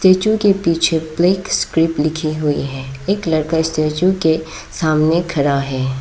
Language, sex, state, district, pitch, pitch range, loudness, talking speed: Hindi, female, Arunachal Pradesh, Lower Dibang Valley, 160 Hz, 150-175 Hz, -17 LUFS, 150 wpm